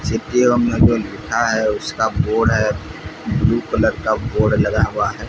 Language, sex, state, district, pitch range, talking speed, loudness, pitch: Hindi, male, Odisha, Sambalpur, 105-115 Hz, 135 wpm, -18 LUFS, 110 Hz